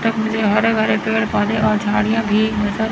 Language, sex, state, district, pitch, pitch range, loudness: Hindi, male, Chandigarh, Chandigarh, 220 Hz, 210-220 Hz, -17 LUFS